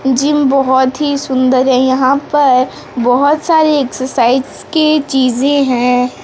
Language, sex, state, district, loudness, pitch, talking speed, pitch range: Hindi, female, Odisha, Sambalpur, -12 LUFS, 265 Hz, 125 wpm, 255-285 Hz